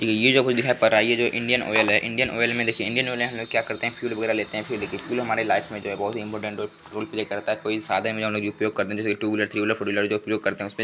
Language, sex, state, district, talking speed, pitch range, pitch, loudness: Hindi, male, Bihar, Begusarai, 310 wpm, 105-120 Hz, 110 Hz, -24 LUFS